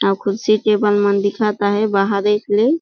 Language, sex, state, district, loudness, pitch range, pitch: Surgujia, female, Chhattisgarh, Sarguja, -17 LUFS, 200-215 Hz, 205 Hz